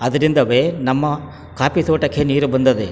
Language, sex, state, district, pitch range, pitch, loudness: Kannada, male, Karnataka, Chamarajanagar, 130-150 Hz, 140 Hz, -17 LUFS